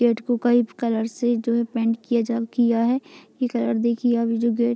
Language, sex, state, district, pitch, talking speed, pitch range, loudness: Hindi, female, Bihar, Gopalganj, 235 Hz, 250 wpm, 230-240 Hz, -22 LUFS